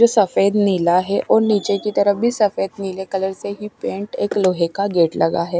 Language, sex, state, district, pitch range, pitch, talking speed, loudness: Hindi, female, Maharashtra, Washim, 185-210 Hz, 200 Hz, 225 wpm, -18 LUFS